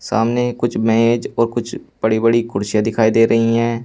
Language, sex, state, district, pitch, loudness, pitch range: Hindi, male, Uttar Pradesh, Saharanpur, 115 Hz, -17 LUFS, 110-115 Hz